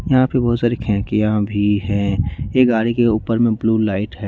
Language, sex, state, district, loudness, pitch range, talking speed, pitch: Hindi, male, Jharkhand, Ranchi, -17 LUFS, 105-120 Hz, 210 wpm, 110 Hz